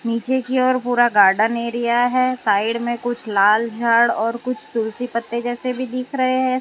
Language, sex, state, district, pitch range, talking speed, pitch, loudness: Hindi, female, Gujarat, Valsad, 230-255 Hz, 190 wpm, 240 Hz, -19 LUFS